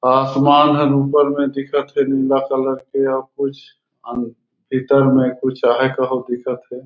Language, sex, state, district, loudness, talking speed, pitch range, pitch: Chhattisgarhi, male, Chhattisgarh, Raigarh, -17 LUFS, 155 wpm, 130-140 Hz, 135 Hz